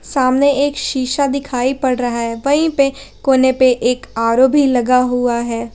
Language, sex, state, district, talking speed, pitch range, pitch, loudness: Hindi, female, Jharkhand, Garhwa, 175 wpm, 245-275 Hz, 260 Hz, -15 LUFS